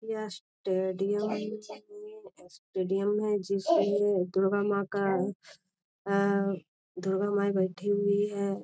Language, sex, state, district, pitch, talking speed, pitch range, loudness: Hindi, female, Bihar, Jamui, 200 Hz, 95 wpm, 190-205 Hz, -30 LUFS